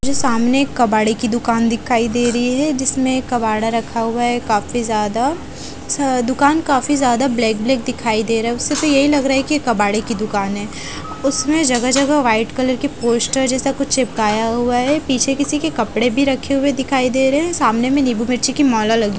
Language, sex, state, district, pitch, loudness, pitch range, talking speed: Hindi, female, Haryana, Jhajjar, 250 Hz, -16 LUFS, 230-275 Hz, 205 wpm